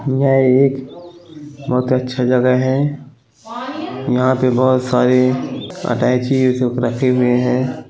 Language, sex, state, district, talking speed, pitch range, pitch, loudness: Hindi, male, Chhattisgarh, Raigarh, 105 wpm, 125-135 Hz, 130 Hz, -16 LUFS